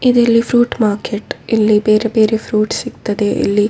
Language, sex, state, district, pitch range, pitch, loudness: Kannada, female, Karnataka, Dakshina Kannada, 210-230 Hz, 215 Hz, -15 LUFS